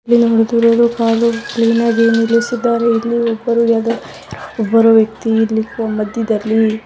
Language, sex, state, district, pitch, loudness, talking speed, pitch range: Kannada, female, Karnataka, Dharwad, 230 Hz, -14 LUFS, 105 wpm, 225-235 Hz